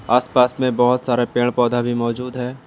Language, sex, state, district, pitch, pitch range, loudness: Hindi, male, Jharkhand, Palamu, 125 Hz, 120-125 Hz, -18 LUFS